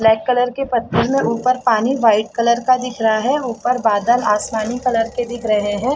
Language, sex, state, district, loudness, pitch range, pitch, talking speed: Hindi, female, Chhattisgarh, Bastar, -17 LUFS, 220-250 Hz, 235 Hz, 220 wpm